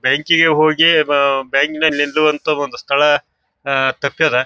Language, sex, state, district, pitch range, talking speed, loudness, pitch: Kannada, male, Karnataka, Bijapur, 140-155 Hz, 150 wpm, -15 LUFS, 145 Hz